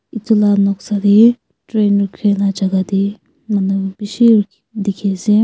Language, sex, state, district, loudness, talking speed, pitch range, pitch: Nagamese, female, Nagaland, Kohima, -15 LUFS, 120 wpm, 200-215 Hz, 205 Hz